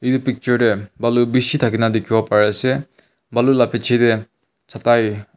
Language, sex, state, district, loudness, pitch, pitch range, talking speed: Nagamese, male, Nagaland, Kohima, -17 LUFS, 120 Hz, 110-125 Hz, 155 wpm